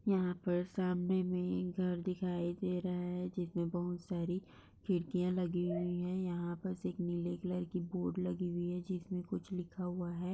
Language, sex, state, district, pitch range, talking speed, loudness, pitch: Hindi, female, Maharashtra, Chandrapur, 175-185 Hz, 185 wpm, -38 LUFS, 180 Hz